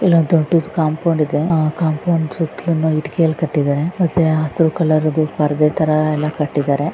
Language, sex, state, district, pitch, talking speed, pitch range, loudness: Kannada, female, Karnataka, Raichur, 155 Hz, 145 wpm, 150-165 Hz, -17 LUFS